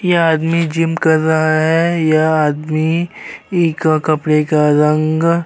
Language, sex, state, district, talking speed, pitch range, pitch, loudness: Hindi, male, Uttar Pradesh, Jyotiba Phule Nagar, 155 wpm, 155-165 Hz, 160 Hz, -14 LUFS